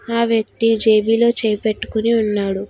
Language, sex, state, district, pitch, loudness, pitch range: Telugu, female, Telangana, Hyderabad, 225 Hz, -17 LUFS, 215-230 Hz